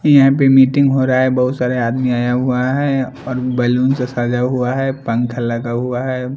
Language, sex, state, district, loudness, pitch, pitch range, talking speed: Hindi, male, Bihar, Patna, -16 LUFS, 125 Hz, 125-130 Hz, 200 wpm